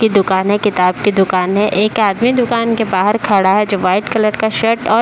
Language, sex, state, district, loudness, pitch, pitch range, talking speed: Hindi, female, Uttar Pradesh, Deoria, -14 LUFS, 210 Hz, 195-225 Hz, 250 wpm